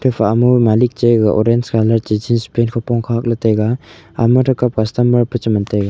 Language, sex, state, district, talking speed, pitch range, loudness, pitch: Wancho, male, Arunachal Pradesh, Longding, 205 wpm, 110-120 Hz, -15 LUFS, 115 Hz